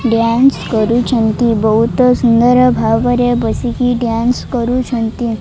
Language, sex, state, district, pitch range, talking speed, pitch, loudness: Odia, female, Odisha, Malkangiri, 225-245 Hz, 90 wpm, 235 Hz, -13 LUFS